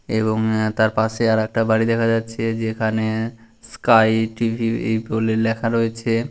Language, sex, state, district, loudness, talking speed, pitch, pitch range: Bengali, male, West Bengal, Malda, -20 LUFS, 150 wpm, 110 Hz, 110-115 Hz